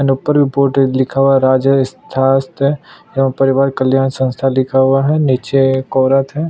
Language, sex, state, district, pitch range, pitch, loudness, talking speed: Hindi, male, Chhattisgarh, Kabirdham, 130-135 Hz, 135 Hz, -14 LUFS, 185 wpm